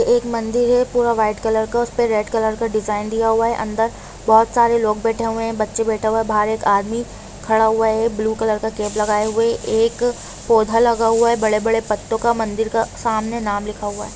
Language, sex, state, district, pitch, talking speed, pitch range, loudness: Hindi, female, Jharkhand, Jamtara, 225 Hz, 240 wpm, 215-230 Hz, -18 LUFS